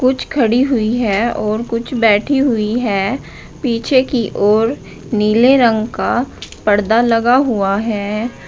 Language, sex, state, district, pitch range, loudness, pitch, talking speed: Hindi, female, Uttar Pradesh, Shamli, 215-250 Hz, -15 LUFS, 230 Hz, 135 wpm